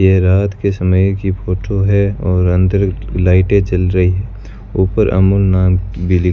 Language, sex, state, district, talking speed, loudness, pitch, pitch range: Hindi, male, Rajasthan, Bikaner, 160 wpm, -14 LUFS, 95 Hz, 90-100 Hz